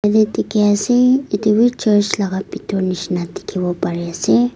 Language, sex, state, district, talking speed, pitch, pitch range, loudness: Nagamese, female, Nagaland, Kohima, 155 wpm, 205 Hz, 185-215 Hz, -17 LUFS